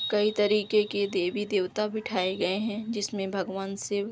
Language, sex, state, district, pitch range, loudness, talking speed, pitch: Hindi, female, Bihar, Darbhanga, 195-210 Hz, -28 LUFS, 175 wpm, 205 Hz